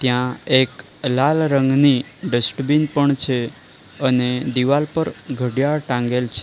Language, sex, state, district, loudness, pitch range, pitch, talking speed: Gujarati, male, Gujarat, Valsad, -19 LUFS, 125-145 Hz, 130 Hz, 120 wpm